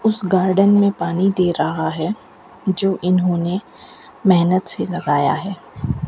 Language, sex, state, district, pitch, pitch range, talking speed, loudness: Hindi, female, Rajasthan, Bikaner, 185 Hz, 180-195 Hz, 130 wpm, -18 LUFS